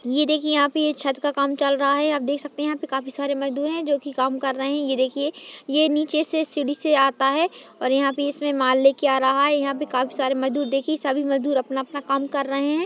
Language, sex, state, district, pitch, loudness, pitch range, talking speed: Hindi, female, Maharashtra, Aurangabad, 280 Hz, -22 LUFS, 270-295 Hz, 270 wpm